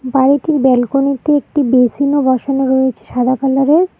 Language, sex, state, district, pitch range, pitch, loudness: Bengali, female, West Bengal, Alipurduar, 260-285 Hz, 270 Hz, -13 LUFS